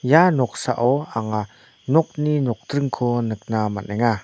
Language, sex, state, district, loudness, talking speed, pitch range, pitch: Garo, male, Meghalaya, North Garo Hills, -21 LUFS, 100 wpm, 110-140 Hz, 120 Hz